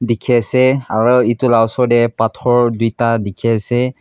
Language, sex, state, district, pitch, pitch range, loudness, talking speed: Nagamese, male, Nagaland, Kohima, 120 Hz, 115-125 Hz, -14 LUFS, 165 wpm